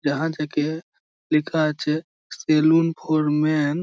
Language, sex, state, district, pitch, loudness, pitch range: Bengali, male, West Bengal, Malda, 155 Hz, -22 LUFS, 150-160 Hz